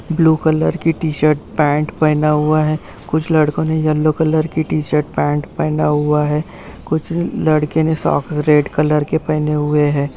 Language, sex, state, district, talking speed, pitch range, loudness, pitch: Hindi, male, West Bengal, Purulia, 185 wpm, 150-160 Hz, -16 LUFS, 155 Hz